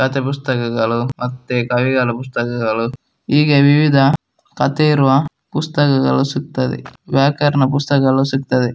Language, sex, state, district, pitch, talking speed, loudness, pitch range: Kannada, male, Karnataka, Dakshina Kannada, 135 Hz, 105 wpm, -16 LUFS, 120-140 Hz